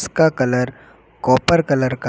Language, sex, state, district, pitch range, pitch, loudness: Hindi, male, Uttar Pradesh, Lucknow, 125-155 Hz, 130 Hz, -17 LUFS